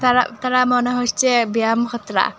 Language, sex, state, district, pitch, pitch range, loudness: Bengali, female, Assam, Hailakandi, 245 Hz, 230-250 Hz, -18 LUFS